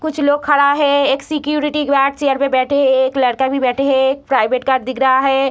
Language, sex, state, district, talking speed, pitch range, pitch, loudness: Hindi, female, Bihar, Saharsa, 240 wpm, 265-285 Hz, 275 Hz, -15 LUFS